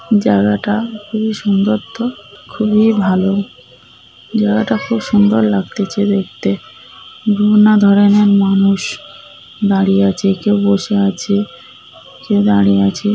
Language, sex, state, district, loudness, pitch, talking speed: Bengali, female, West Bengal, North 24 Parganas, -14 LUFS, 195 Hz, 100 wpm